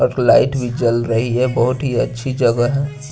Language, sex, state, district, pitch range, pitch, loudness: Hindi, male, Chandigarh, Chandigarh, 120-135 Hz, 125 Hz, -17 LUFS